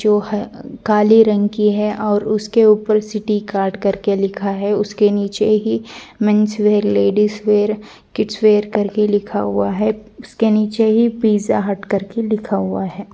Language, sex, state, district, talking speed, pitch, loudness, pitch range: Hindi, female, Bihar, Purnia, 175 wpm, 210 Hz, -16 LUFS, 205-215 Hz